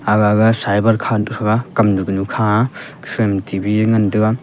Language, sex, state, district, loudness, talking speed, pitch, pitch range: Wancho, male, Arunachal Pradesh, Longding, -16 LUFS, 190 wpm, 110 Hz, 100-115 Hz